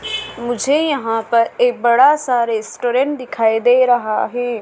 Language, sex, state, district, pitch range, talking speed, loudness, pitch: Hindi, female, Madhya Pradesh, Dhar, 230-255 Hz, 145 wpm, -16 LUFS, 240 Hz